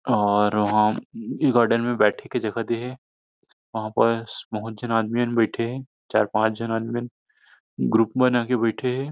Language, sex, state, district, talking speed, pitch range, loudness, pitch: Chhattisgarhi, male, Chhattisgarh, Rajnandgaon, 180 wpm, 110-125 Hz, -23 LUFS, 115 Hz